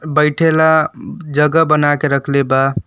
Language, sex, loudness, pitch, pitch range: Bhojpuri, male, -14 LUFS, 150 Hz, 140-160 Hz